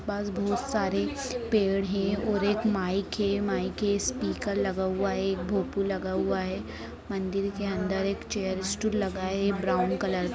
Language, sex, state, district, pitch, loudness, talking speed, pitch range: Hindi, female, Bihar, Darbhanga, 195 Hz, -29 LUFS, 175 wpm, 190-205 Hz